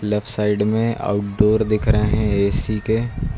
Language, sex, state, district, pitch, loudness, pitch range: Hindi, male, Uttar Pradesh, Lucknow, 105 Hz, -19 LUFS, 105-110 Hz